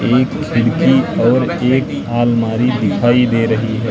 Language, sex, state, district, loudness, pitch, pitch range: Hindi, male, Madhya Pradesh, Katni, -14 LUFS, 120 Hz, 115-125 Hz